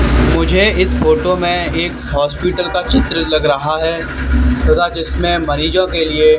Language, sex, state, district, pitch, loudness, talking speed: Hindi, male, Haryana, Charkhi Dadri, 155 Hz, -14 LUFS, 150 wpm